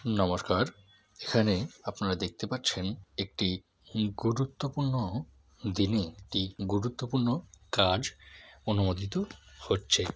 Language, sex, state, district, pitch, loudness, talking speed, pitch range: Bengali, male, West Bengal, Jalpaiguri, 105 Hz, -31 LUFS, 85 wpm, 95-120 Hz